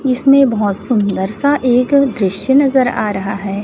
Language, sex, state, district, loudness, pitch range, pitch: Hindi, female, Chhattisgarh, Raipur, -14 LUFS, 200-270 Hz, 245 Hz